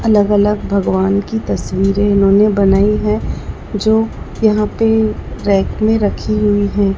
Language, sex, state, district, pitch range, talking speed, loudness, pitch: Hindi, male, Chhattisgarh, Raipur, 200-215 Hz, 140 wpm, -14 LUFS, 205 Hz